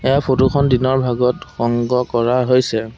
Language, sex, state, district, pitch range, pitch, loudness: Assamese, male, Assam, Sonitpur, 120-130 Hz, 125 Hz, -16 LUFS